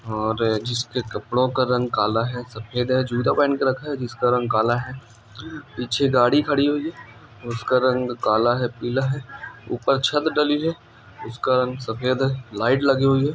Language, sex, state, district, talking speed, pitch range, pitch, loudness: Hindi, male, Andhra Pradesh, Anantapur, 195 wpm, 115-135 Hz, 125 Hz, -22 LUFS